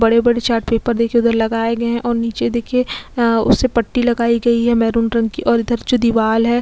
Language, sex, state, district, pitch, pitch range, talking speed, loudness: Hindi, female, Uttar Pradesh, Jyotiba Phule Nagar, 235 Hz, 230-235 Hz, 235 wpm, -16 LUFS